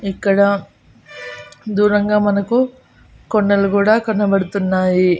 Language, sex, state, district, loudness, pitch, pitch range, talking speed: Telugu, female, Andhra Pradesh, Annamaya, -16 LUFS, 200 Hz, 190-210 Hz, 70 wpm